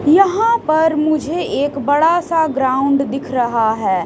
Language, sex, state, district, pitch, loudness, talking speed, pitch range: Hindi, female, Haryana, Rohtak, 290 Hz, -16 LUFS, 145 wpm, 265-320 Hz